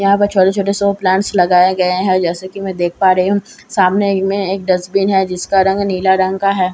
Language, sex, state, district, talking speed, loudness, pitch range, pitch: Hindi, female, Bihar, Katihar, 240 wpm, -14 LUFS, 185-200 Hz, 190 Hz